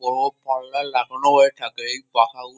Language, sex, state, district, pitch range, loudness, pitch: Bengali, male, West Bengal, Kolkata, 125-140 Hz, -21 LUFS, 130 Hz